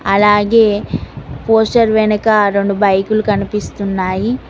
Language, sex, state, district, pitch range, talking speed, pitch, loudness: Telugu, female, Telangana, Mahabubabad, 200-220 Hz, 80 wpm, 210 Hz, -13 LUFS